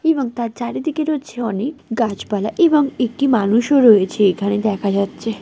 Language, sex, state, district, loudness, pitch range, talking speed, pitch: Bengali, female, West Bengal, Jalpaiguri, -17 LUFS, 205-275 Hz, 135 wpm, 235 Hz